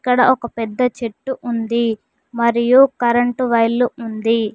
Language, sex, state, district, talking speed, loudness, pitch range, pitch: Telugu, female, Telangana, Mahabubabad, 120 wpm, -17 LUFS, 230-250 Hz, 235 Hz